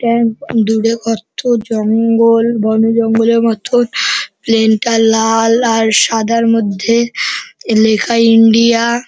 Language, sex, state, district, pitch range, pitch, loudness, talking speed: Bengali, male, West Bengal, Dakshin Dinajpur, 225-235 Hz, 230 Hz, -12 LUFS, 100 wpm